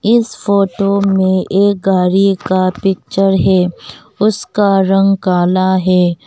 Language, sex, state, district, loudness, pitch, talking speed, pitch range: Hindi, female, Arunachal Pradesh, Longding, -13 LUFS, 195 Hz, 115 wpm, 185-200 Hz